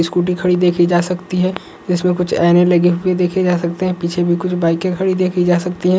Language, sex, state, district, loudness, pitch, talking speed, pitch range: Hindi, male, Bihar, Jahanabad, -16 LUFS, 180 Hz, 260 wpm, 175-180 Hz